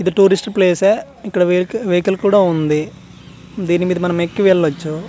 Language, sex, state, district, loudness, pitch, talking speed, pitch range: Telugu, male, Andhra Pradesh, Manyam, -16 LUFS, 180 Hz, 175 wpm, 175-195 Hz